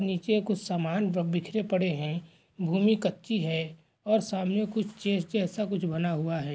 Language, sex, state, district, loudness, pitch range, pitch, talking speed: Hindi, male, Chhattisgarh, Rajnandgaon, -29 LUFS, 170-210 Hz, 185 Hz, 165 wpm